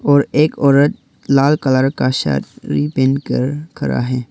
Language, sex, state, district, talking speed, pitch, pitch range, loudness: Hindi, male, Arunachal Pradesh, Longding, 155 wpm, 135 Hz, 130-145 Hz, -16 LUFS